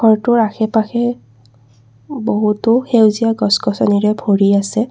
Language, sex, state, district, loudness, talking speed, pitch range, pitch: Assamese, female, Assam, Kamrup Metropolitan, -15 LUFS, 110 wpm, 200-230 Hz, 215 Hz